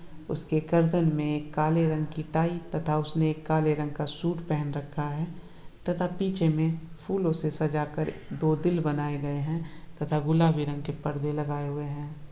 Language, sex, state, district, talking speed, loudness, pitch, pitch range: Hindi, male, Bihar, Lakhisarai, 185 wpm, -29 LUFS, 155 Hz, 150-165 Hz